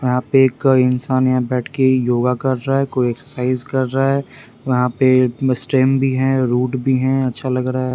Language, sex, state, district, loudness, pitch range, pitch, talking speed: Hindi, male, Bihar, Patna, -17 LUFS, 125-135 Hz, 130 Hz, 210 wpm